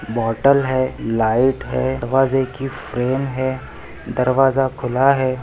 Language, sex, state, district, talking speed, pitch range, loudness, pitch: Hindi, male, Maharashtra, Nagpur, 120 wpm, 120-135 Hz, -19 LUFS, 130 Hz